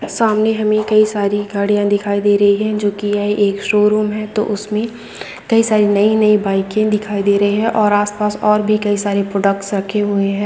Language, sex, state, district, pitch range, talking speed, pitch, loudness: Hindi, female, Bihar, Vaishali, 205-215 Hz, 185 wpm, 210 Hz, -15 LUFS